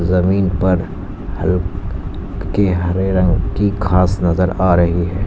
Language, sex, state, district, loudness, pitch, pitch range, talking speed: Hindi, male, Uttar Pradesh, Lalitpur, -17 LUFS, 90 Hz, 85-95 Hz, 135 wpm